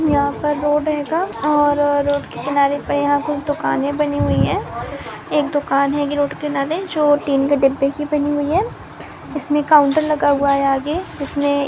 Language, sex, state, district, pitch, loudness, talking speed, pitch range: Hindi, female, Maharashtra, Chandrapur, 290 Hz, -18 LUFS, 190 wpm, 285-295 Hz